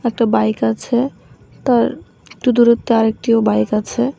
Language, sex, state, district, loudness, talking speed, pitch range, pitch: Bengali, female, Tripura, West Tripura, -16 LUFS, 130 wpm, 215-240 Hz, 235 Hz